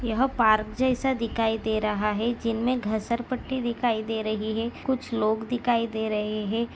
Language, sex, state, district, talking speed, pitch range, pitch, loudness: Hindi, female, Maharashtra, Dhule, 170 wpm, 220-245 Hz, 230 Hz, -26 LUFS